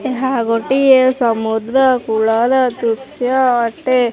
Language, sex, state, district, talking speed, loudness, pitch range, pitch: Odia, male, Odisha, Khordha, 85 wpm, -15 LUFS, 230-260 Hz, 250 Hz